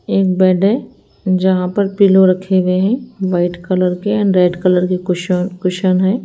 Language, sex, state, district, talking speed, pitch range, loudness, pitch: Hindi, female, Haryana, Rohtak, 180 wpm, 180-195 Hz, -15 LUFS, 185 Hz